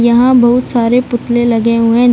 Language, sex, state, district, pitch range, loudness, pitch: Hindi, female, Bihar, Gaya, 235-245 Hz, -11 LUFS, 240 Hz